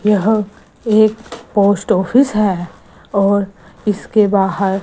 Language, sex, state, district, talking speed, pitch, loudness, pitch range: Hindi, female, Gujarat, Gandhinagar, 100 wpm, 205 Hz, -15 LUFS, 195-215 Hz